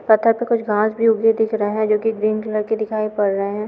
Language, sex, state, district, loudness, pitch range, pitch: Hindi, female, Uttar Pradesh, Budaun, -19 LUFS, 210-220 Hz, 215 Hz